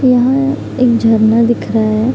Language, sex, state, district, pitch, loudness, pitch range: Hindi, female, Bihar, Araria, 235 Hz, -12 LUFS, 225-255 Hz